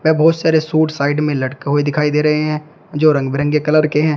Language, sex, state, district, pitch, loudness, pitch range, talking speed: Hindi, male, Uttar Pradesh, Shamli, 150 Hz, -16 LUFS, 145-155 Hz, 260 wpm